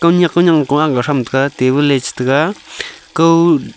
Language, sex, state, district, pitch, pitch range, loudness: Wancho, male, Arunachal Pradesh, Longding, 145 Hz, 135-165 Hz, -13 LUFS